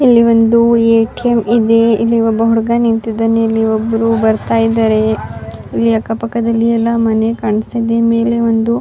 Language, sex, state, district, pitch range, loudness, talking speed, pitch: Kannada, female, Karnataka, Raichur, 225-230 Hz, -13 LUFS, 135 wpm, 230 Hz